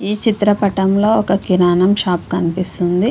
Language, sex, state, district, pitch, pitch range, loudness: Telugu, female, Andhra Pradesh, Visakhapatnam, 195 Hz, 180-210 Hz, -15 LUFS